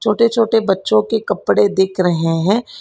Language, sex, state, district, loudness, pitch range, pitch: Hindi, female, Karnataka, Bangalore, -16 LUFS, 180-225 Hz, 205 Hz